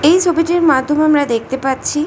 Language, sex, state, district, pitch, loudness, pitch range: Bengali, female, West Bengal, North 24 Parganas, 300 Hz, -14 LUFS, 265-330 Hz